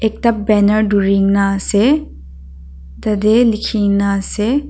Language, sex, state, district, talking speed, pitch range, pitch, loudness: Nagamese, female, Nagaland, Dimapur, 75 wpm, 195-220 Hz, 205 Hz, -15 LUFS